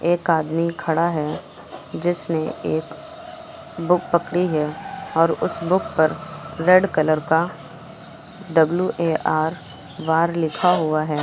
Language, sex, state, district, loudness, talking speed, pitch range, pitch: Hindi, female, Uttar Pradesh, Lucknow, -20 LUFS, 110 wpm, 160-175 Hz, 165 Hz